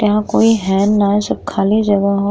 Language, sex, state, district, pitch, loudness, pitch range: Bhojpuri, female, Uttar Pradesh, Gorakhpur, 205 Hz, -14 LUFS, 200-215 Hz